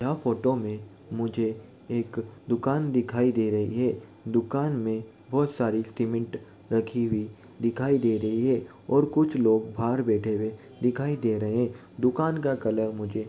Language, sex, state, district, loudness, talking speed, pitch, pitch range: Hindi, male, Uttar Pradesh, Jalaun, -27 LUFS, 165 wpm, 115 Hz, 110-125 Hz